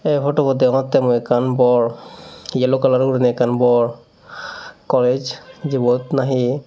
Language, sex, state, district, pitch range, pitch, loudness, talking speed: Chakma, male, Tripura, Dhalai, 125-135 Hz, 125 Hz, -17 LUFS, 125 wpm